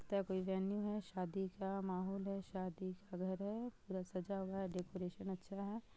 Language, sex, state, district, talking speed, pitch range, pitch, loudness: Hindi, female, Bihar, Purnia, 170 wpm, 185-195 Hz, 190 Hz, -44 LUFS